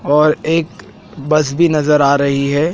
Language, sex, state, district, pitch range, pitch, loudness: Hindi, male, Madhya Pradesh, Dhar, 145-165 Hz, 150 Hz, -14 LUFS